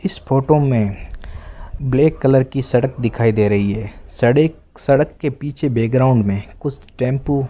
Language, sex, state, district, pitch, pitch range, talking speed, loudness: Hindi, male, Rajasthan, Bikaner, 130 Hz, 105-140 Hz, 170 wpm, -17 LUFS